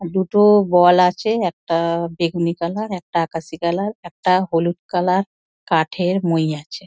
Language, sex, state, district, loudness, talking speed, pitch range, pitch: Bengali, female, West Bengal, Dakshin Dinajpur, -18 LUFS, 130 wpm, 170-190 Hz, 175 Hz